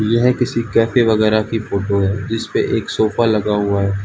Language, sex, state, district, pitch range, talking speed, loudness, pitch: Hindi, male, Arunachal Pradesh, Lower Dibang Valley, 100-115 Hz, 205 wpm, -17 LUFS, 110 Hz